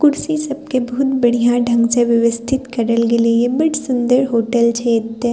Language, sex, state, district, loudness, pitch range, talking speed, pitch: Maithili, female, Bihar, Purnia, -16 LUFS, 235-265 Hz, 180 wpm, 240 Hz